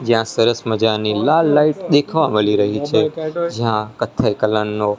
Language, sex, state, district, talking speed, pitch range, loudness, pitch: Gujarati, male, Gujarat, Gandhinagar, 155 wpm, 105-150 Hz, -17 LUFS, 115 Hz